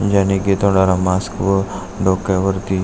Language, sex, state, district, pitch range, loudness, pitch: Marathi, male, Maharashtra, Aurangabad, 95-100 Hz, -17 LUFS, 95 Hz